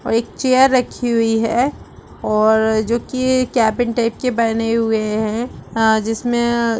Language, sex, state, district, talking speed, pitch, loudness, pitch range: Hindi, female, Uttar Pradesh, Budaun, 140 wpm, 230 Hz, -17 LUFS, 220-245 Hz